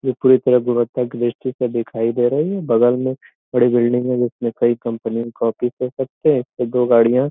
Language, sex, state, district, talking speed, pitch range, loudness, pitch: Hindi, male, Bihar, Gopalganj, 220 wpm, 120-125 Hz, -18 LUFS, 120 Hz